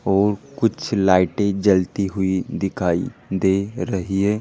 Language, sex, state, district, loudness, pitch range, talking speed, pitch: Hindi, male, Rajasthan, Jaipur, -20 LUFS, 95-105 Hz, 120 wpm, 95 Hz